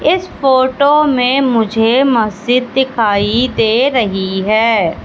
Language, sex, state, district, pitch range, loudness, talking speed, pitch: Hindi, female, Madhya Pradesh, Katni, 220-265 Hz, -13 LUFS, 105 wpm, 245 Hz